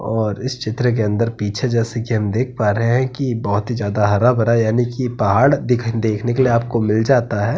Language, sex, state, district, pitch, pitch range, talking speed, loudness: Hindi, male, Uttarakhand, Tehri Garhwal, 115 Hz, 110-125 Hz, 220 wpm, -18 LUFS